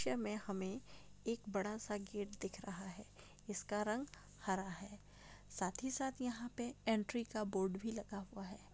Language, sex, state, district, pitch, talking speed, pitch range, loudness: Hindi, female, Jharkhand, Jamtara, 210 Hz, 170 wpm, 200-230 Hz, -44 LUFS